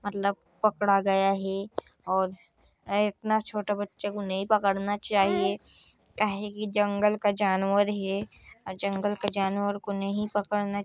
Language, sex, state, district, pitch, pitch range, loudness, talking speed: Hindi, female, Chhattisgarh, Sarguja, 200 Hz, 195-205 Hz, -28 LUFS, 145 wpm